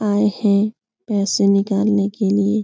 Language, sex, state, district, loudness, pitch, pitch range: Hindi, female, Bihar, Supaul, -18 LUFS, 205 Hz, 200-210 Hz